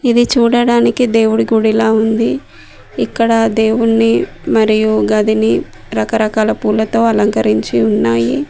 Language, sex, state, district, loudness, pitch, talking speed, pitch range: Telugu, female, Telangana, Mahabubabad, -13 LUFS, 220 Hz, 90 wpm, 215-230 Hz